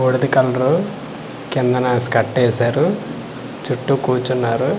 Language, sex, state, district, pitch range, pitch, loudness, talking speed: Telugu, male, Andhra Pradesh, Manyam, 125-130 Hz, 125 Hz, -18 LUFS, 100 wpm